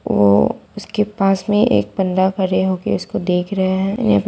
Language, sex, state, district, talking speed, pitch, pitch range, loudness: Hindi, female, Bihar, Saharsa, 210 wpm, 190 Hz, 180-200 Hz, -17 LUFS